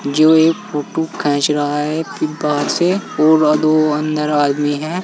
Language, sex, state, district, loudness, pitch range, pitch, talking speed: Hindi, male, Uttar Pradesh, Saharanpur, -16 LUFS, 145-160 Hz, 150 Hz, 165 wpm